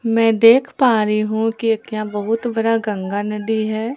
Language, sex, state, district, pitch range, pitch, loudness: Hindi, female, Bihar, Katihar, 215-230 Hz, 225 Hz, -18 LUFS